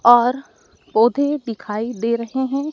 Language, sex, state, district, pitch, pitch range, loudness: Hindi, female, Madhya Pradesh, Dhar, 245 Hz, 230-275 Hz, -19 LUFS